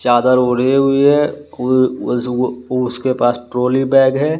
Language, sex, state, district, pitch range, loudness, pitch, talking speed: Hindi, male, Bihar, West Champaran, 125-135 Hz, -15 LUFS, 130 Hz, 165 wpm